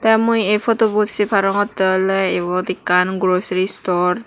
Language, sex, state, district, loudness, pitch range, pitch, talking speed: Chakma, female, Tripura, West Tripura, -17 LUFS, 185-210 Hz, 195 Hz, 170 wpm